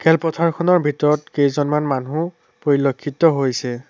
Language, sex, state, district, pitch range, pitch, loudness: Assamese, male, Assam, Sonitpur, 140-160 Hz, 150 Hz, -19 LUFS